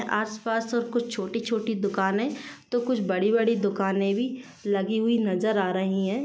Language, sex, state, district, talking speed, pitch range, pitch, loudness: Hindi, female, Uttar Pradesh, Jyotiba Phule Nagar, 155 wpm, 195-235 Hz, 220 Hz, -26 LUFS